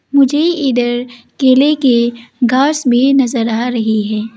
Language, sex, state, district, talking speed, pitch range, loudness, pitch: Hindi, female, Arunachal Pradesh, Lower Dibang Valley, 135 wpm, 235-270 Hz, -13 LUFS, 245 Hz